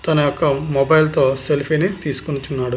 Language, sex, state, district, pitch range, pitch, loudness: Telugu, male, Andhra Pradesh, Srikakulam, 135-155 Hz, 145 Hz, -18 LUFS